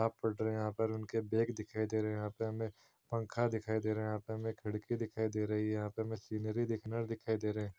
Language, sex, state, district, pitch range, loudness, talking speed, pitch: Hindi, male, Chhattisgarh, Bilaspur, 110-115 Hz, -38 LUFS, 275 wpm, 110 Hz